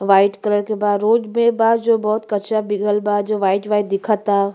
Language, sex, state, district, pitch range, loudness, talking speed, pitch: Bhojpuri, female, Uttar Pradesh, Gorakhpur, 205-215 Hz, -18 LUFS, 225 wpm, 210 Hz